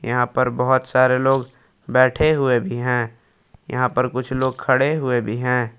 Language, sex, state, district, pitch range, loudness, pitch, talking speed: Hindi, male, Jharkhand, Palamu, 125-130 Hz, -19 LUFS, 125 Hz, 175 wpm